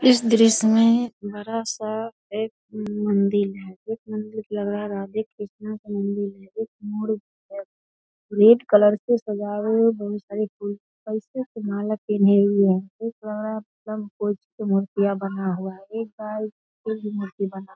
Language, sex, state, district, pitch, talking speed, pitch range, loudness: Hindi, female, Bihar, Darbhanga, 210 Hz, 120 wpm, 200-220 Hz, -23 LUFS